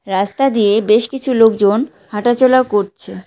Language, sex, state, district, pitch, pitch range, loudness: Bengali, female, West Bengal, Cooch Behar, 220 Hz, 200-255 Hz, -14 LUFS